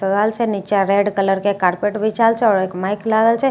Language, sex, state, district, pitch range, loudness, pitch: Maithili, female, Bihar, Katihar, 195-220 Hz, -17 LUFS, 205 Hz